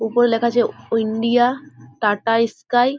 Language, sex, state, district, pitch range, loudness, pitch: Bengali, female, West Bengal, Jhargram, 225-245 Hz, -19 LUFS, 230 Hz